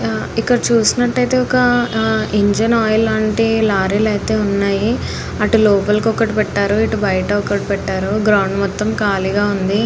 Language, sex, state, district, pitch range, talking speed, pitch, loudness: Telugu, female, Andhra Pradesh, Anantapur, 200-225 Hz, 135 wpm, 210 Hz, -16 LUFS